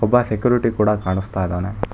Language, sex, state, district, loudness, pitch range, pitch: Kannada, male, Karnataka, Bangalore, -20 LUFS, 95-115 Hz, 105 Hz